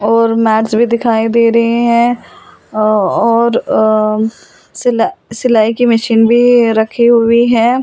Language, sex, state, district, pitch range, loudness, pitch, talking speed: Hindi, female, Delhi, New Delhi, 225-235 Hz, -11 LUFS, 230 Hz, 130 wpm